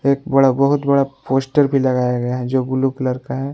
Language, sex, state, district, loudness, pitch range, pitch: Hindi, male, Jharkhand, Palamu, -17 LUFS, 130-140 Hz, 135 Hz